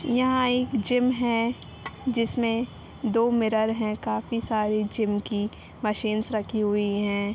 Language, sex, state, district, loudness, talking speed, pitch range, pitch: Hindi, female, Bihar, Sitamarhi, -26 LUFS, 140 wpm, 210-240 Hz, 225 Hz